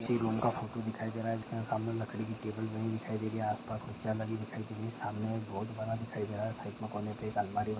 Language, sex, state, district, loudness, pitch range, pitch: Hindi, male, Andhra Pradesh, Guntur, -37 LUFS, 110-115 Hz, 110 Hz